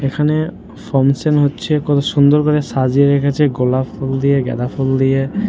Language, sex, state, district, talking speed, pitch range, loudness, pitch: Bengali, male, West Bengal, Jhargram, 155 wpm, 135-150 Hz, -15 LUFS, 140 Hz